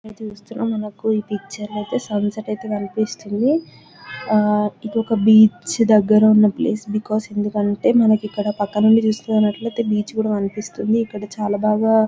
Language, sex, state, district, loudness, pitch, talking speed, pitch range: Telugu, female, Telangana, Nalgonda, -19 LUFS, 215 Hz, 135 wpm, 210-220 Hz